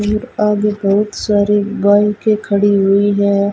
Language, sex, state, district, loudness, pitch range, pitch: Hindi, female, Rajasthan, Bikaner, -14 LUFS, 200-210 Hz, 205 Hz